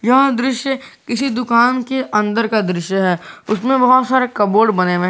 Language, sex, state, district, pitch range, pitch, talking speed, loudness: Hindi, male, Jharkhand, Garhwa, 205-260 Hz, 235 Hz, 190 wpm, -16 LUFS